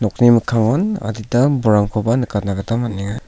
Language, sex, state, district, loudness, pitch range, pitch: Garo, male, Meghalaya, South Garo Hills, -17 LUFS, 105-120 Hz, 115 Hz